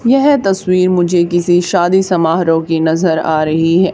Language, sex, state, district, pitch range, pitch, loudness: Hindi, female, Haryana, Charkhi Dadri, 165-185 Hz, 175 Hz, -12 LUFS